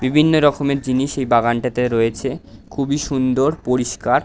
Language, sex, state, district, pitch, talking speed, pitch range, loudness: Bengali, male, West Bengal, Dakshin Dinajpur, 130 Hz, 125 wpm, 125-140 Hz, -18 LUFS